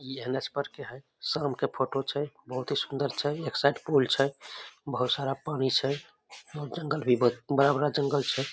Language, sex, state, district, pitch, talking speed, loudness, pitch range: Maithili, male, Bihar, Samastipur, 140 Hz, 205 wpm, -29 LUFS, 130-145 Hz